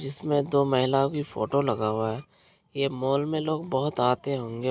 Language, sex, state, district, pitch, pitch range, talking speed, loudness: Hindi, male, Bihar, Araria, 140 Hz, 130-150 Hz, 190 wpm, -26 LUFS